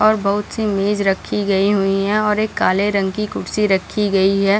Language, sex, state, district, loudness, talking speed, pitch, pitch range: Hindi, female, Maharashtra, Chandrapur, -18 LUFS, 220 wpm, 200 Hz, 195-210 Hz